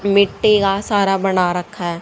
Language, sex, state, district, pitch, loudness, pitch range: Hindi, female, Haryana, Jhajjar, 195 Hz, -16 LUFS, 180-200 Hz